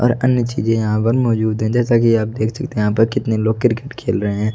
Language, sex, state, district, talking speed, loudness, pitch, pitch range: Hindi, male, Odisha, Nuapada, 265 wpm, -17 LUFS, 115 Hz, 110-120 Hz